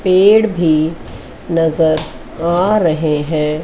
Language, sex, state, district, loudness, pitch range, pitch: Hindi, female, Chandigarh, Chandigarh, -14 LUFS, 155-175 Hz, 160 Hz